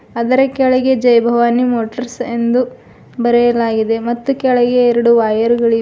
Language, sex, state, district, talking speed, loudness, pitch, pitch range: Kannada, female, Karnataka, Bidar, 125 wpm, -14 LUFS, 240 Hz, 235-250 Hz